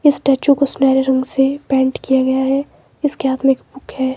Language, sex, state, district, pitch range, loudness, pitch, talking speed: Hindi, male, Himachal Pradesh, Shimla, 265-275 Hz, -16 LUFS, 270 Hz, 230 wpm